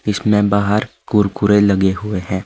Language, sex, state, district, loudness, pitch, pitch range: Hindi, male, Himachal Pradesh, Shimla, -16 LUFS, 105 Hz, 100-105 Hz